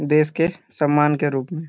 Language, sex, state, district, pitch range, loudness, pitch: Hindi, male, Jharkhand, Jamtara, 145-160 Hz, -20 LUFS, 150 Hz